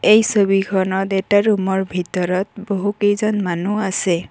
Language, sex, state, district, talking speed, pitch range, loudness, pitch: Assamese, female, Assam, Kamrup Metropolitan, 125 wpm, 190-205 Hz, -18 LUFS, 195 Hz